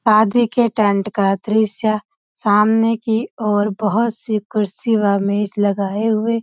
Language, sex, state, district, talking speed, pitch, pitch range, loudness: Hindi, female, Uttarakhand, Uttarkashi, 140 wpm, 215 Hz, 205-225 Hz, -17 LUFS